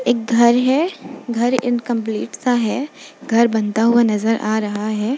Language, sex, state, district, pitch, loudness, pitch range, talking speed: Hindi, female, Uttar Pradesh, Jalaun, 235 Hz, -18 LUFS, 220-255 Hz, 160 wpm